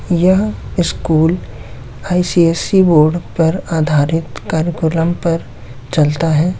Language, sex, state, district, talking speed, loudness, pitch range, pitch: Hindi, male, Bihar, Samastipur, 90 wpm, -15 LUFS, 150-175 Hz, 165 Hz